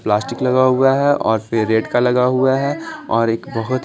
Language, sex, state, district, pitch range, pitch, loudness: Hindi, male, Bihar, Patna, 115-135 Hz, 125 Hz, -17 LUFS